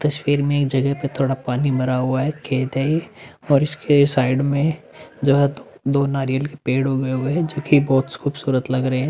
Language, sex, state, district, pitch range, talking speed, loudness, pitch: Hindi, male, Uttar Pradesh, Budaun, 130-145 Hz, 205 wpm, -20 LUFS, 140 Hz